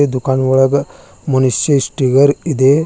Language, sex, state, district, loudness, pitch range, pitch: Kannada, male, Karnataka, Bidar, -13 LUFS, 130-145 Hz, 135 Hz